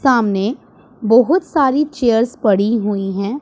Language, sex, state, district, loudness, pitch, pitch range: Hindi, female, Punjab, Pathankot, -16 LUFS, 235 Hz, 205-265 Hz